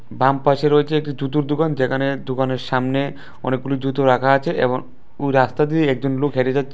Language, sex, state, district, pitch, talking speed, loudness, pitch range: Bengali, male, Tripura, West Tripura, 135 Hz, 180 wpm, -19 LUFS, 130-145 Hz